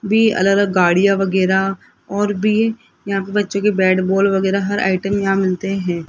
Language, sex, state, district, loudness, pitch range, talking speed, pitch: Hindi, female, Rajasthan, Jaipur, -17 LUFS, 190-200 Hz, 185 wpm, 195 Hz